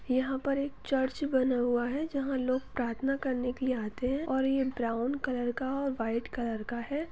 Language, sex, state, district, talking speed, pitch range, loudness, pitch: Hindi, female, Chhattisgarh, Bastar, 200 wpm, 245-270 Hz, -32 LUFS, 260 Hz